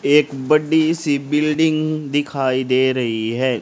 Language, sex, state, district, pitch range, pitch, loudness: Hindi, male, Haryana, Rohtak, 130-155 Hz, 145 Hz, -18 LUFS